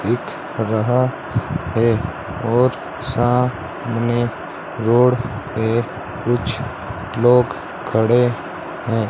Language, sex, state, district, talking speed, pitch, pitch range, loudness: Hindi, male, Rajasthan, Bikaner, 70 wpm, 120 Hz, 110-125 Hz, -19 LUFS